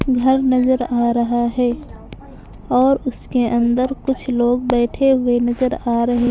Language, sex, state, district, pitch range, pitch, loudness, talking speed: Hindi, female, Maharashtra, Mumbai Suburban, 240-260 Hz, 245 Hz, -17 LUFS, 150 wpm